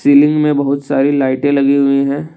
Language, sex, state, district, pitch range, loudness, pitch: Hindi, male, Assam, Kamrup Metropolitan, 140-145 Hz, -13 LUFS, 140 Hz